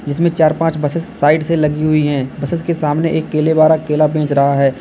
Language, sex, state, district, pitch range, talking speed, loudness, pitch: Hindi, male, Uttar Pradesh, Lalitpur, 145-160 Hz, 235 wpm, -15 LUFS, 155 Hz